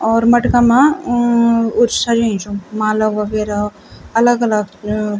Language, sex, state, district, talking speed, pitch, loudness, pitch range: Garhwali, female, Uttarakhand, Tehri Garhwal, 125 wpm, 225 Hz, -15 LUFS, 210-235 Hz